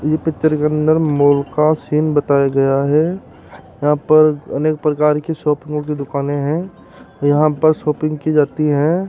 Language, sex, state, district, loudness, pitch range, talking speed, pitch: Hindi, male, Rajasthan, Jaipur, -16 LUFS, 145-155 Hz, 165 wpm, 150 Hz